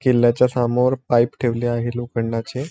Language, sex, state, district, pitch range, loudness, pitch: Marathi, male, Maharashtra, Chandrapur, 120-125 Hz, -20 LUFS, 120 Hz